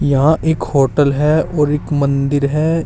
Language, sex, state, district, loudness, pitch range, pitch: Hindi, male, Uttar Pradesh, Saharanpur, -15 LUFS, 140-155 Hz, 150 Hz